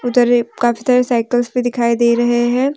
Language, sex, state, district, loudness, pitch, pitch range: Hindi, female, Jharkhand, Deoghar, -15 LUFS, 240 Hz, 235-250 Hz